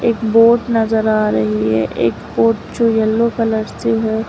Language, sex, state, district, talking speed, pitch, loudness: Hindi, female, Uttar Pradesh, Lalitpur, 180 wpm, 220 Hz, -15 LUFS